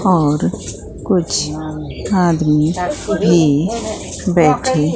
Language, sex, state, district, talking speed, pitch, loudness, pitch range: Hindi, female, Bihar, Katihar, 60 wpm, 165 Hz, -16 LUFS, 155-185 Hz